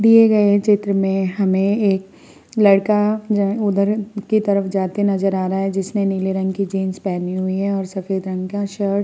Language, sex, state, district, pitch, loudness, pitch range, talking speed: Hindi, female, Uttar Pradesh, Hamirpur, 195 Hz, -18 LUFS, 190-205 Hz, 205 wpm